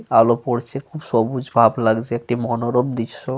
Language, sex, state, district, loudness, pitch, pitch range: Bengali, male, Jharkhand, Sahebganj, -19 LUFS, 120 Hz, 115-130 Hz